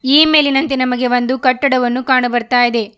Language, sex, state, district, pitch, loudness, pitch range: Kannada, female, Karnataka, Bidar, 255 Hz, -13 LUFS, 245-270 Hz